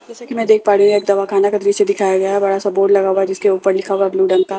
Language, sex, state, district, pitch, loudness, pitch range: Hindi, female, Bihar, Katihar, 200 Hz, -15 LUFS, 195-205 Hz